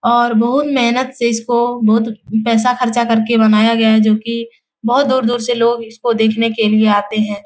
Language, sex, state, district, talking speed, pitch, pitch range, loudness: Hindi, female, Bihar, Jahanabad, 200 wpm, 230 Hz, 220-240 Hz, -14 LUFS